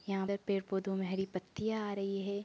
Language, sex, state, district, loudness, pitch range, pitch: Hindi, female, Uttar Pradesh, Etah, -37 LUFS, 195-200 Hz, 195 Hz